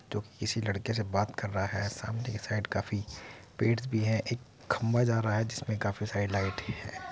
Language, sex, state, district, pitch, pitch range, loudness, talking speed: Hindi, male, Uttar Pradesh, Muzaffarnagar, 110 Hz, 100-115 Hz, -32 LUFS, 235 wpm